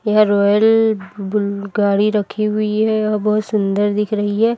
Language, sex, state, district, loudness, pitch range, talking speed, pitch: Hindi, female, Chhattisgarh, Raipur, -17 LUFS, 205-215 Hz, 170 wpm, 210 Hz